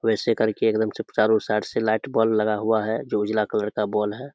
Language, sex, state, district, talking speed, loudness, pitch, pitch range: Hindi, male, Bihar, Samastipur, 260 wpm, -23 LUFS, 110 Hz, 105-110 Hz